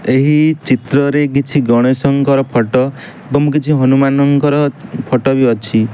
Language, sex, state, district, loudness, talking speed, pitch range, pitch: Odia, male, Odisha, Malkangiri, -13 LUFS, 140 wpm, 130-145 Hz, 140 Hz